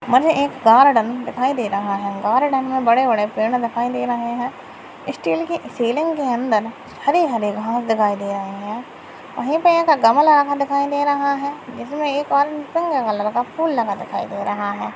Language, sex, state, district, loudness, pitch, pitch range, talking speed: Hindi, female, Maharashtra, Aurangabad, -19 LUFS, 250 Hz, 225-285 Hz, 180 wpm